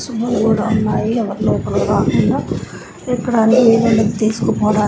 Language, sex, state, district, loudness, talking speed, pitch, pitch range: Telugu, female, Andhra Pradesh, Chittoor, -16 LUFS, 110 wpm, 220 Hz, 215-235 Hz